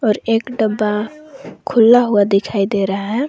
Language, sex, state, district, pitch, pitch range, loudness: Hindi, female, Jharkhand, Garhwa, 220 Hz, 205-245 Hz, -16 LUFS